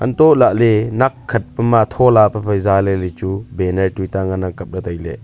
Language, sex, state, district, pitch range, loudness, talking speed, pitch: Wancho, male, Arunachal Pradesh, Longding, 95-115 Hz, -16 LUFS, 185 wpm, 100 Hz